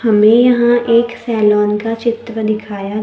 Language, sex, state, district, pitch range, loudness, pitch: Hindi, female, Maharashtra, Gondia, 210-235 Hz, -14 LUFS, 225 Hz